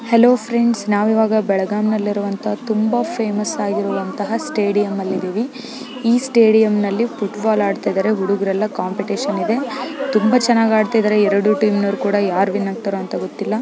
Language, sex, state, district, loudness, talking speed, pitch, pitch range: Kannada, female, Karnataka, Belgaum, -18 LUFS, 135 wpm, 210 Hz, 200-230 Hz